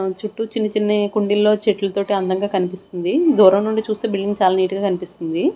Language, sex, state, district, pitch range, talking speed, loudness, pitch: Telugu, female, Andhra Pradesh, Sri Satya Sai, 190-215 Hz, 175 wpm, -18 LUFS, 205 Hz